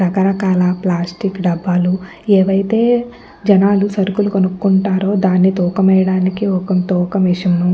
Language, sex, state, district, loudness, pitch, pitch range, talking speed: Telugu, female, Andhra Pradesh, Guntur, -15 LUFS, 190 Hz, 185-195 Hz, 110 wpm